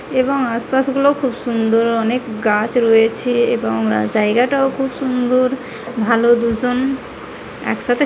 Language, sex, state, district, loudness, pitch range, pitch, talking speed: Bengali, female, West Bengal, Malda, -17 LUFS, 230-260 Hz, 245 Hz, 125 wpm